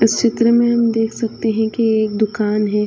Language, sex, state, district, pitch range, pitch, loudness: Hindi, female, Chhattisgarh, Sarguja, 215-230 Hz, 225 Hz, -16 LUFS